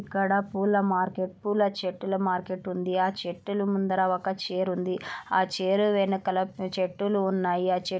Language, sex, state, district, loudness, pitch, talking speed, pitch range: Telugu, female, Andhra Pradesh, Anantapur, -27 LUFS, 190 Hz, 125 wpm, 185-195 Hz